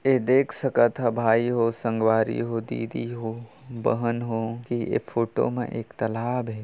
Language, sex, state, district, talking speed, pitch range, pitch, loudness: Hindi, male, Chhattisgarh, Kabirdham, 170 wpm, 115-120 Hz, 115 Hz, -25 LUFS